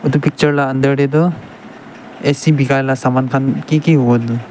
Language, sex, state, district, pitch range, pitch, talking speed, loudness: Nagamese, male, Nagaland, Dimapur, 130-150 Hz, 140 Hz, 200 wpm, -14 LUFS